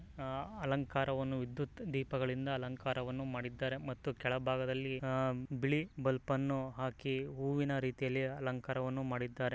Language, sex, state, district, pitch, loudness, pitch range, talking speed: Kannada, male, Karnataka, Mysore, 130 Hz, -38 LUFS, 130-135 Hz, 120 wpm